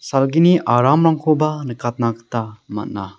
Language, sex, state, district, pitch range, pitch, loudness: Garo, male, Meghalaya, South Garo Hills, 115-155 Hz, 125 Hz, -17 LUFS